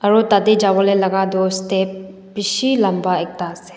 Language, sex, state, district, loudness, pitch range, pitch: Nagamese, female, Nagaland, Dimapur, -17 LUFS, 190-205 Hz, 190 Hz